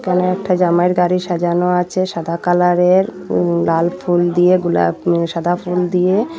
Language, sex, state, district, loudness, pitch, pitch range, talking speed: Bengali, female, Assam, Hailakandi, -16 LUFS, 180 Hz, 175-180 Hz, 160 wpm